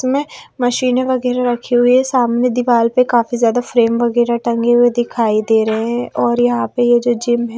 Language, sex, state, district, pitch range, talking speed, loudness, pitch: Hindi, female, Haryana, Rohtak, 235-245 Hz, 205 wpm, -15 LUFS, 240 Hz